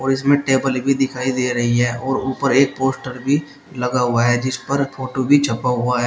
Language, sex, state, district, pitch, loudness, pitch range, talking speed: Hindi, male, Uttar Pradesh, Shamli, 130 Hz, -18 LUFS, 125-135 Hz, 230 wpm